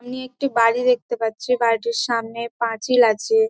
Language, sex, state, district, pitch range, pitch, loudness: Bengali, female, West Bengal, Dakshin Dinajpur, 230-250 Hz, 235 Hz, -20 LUFS